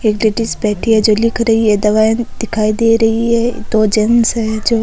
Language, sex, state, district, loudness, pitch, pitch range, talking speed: Rajasthani, female, Rajasthan, Nagaur, -13 LUFS, 225 Hz, 215-230 Hz, 225 wpm